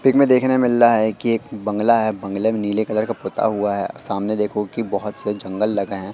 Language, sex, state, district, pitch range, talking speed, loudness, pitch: Hindi, male, Madhya Pradesh, Katni, 105-115 Hz, 255 wpm, -20 LUFS, 105 Hz